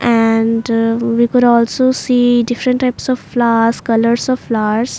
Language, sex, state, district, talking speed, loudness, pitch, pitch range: English, female, Maharashtra, Mumbai Suburban, 145 wpm, -14 LUFS, 235 Hz, 230-250 Hz